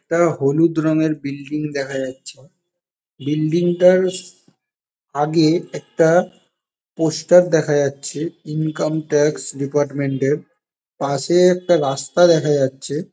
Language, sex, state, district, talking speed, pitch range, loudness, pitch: Bengali, male, West Bengal, Jalpaiguri, 100 wpm, 140-170 Hz, -18 LUFS, 155 Hz